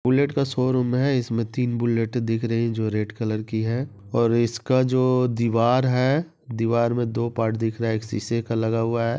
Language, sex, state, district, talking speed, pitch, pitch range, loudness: Hindi, male, Chhattisgarh, Bilaspur, 215 wpm, 115 Hz, 115-125 Hz, -23 LUFS